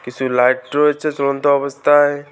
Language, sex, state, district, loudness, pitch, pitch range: Bengali, male, West Bengal, Alipurduar, -16 LUFS, 140 Hz, 130-145 Hz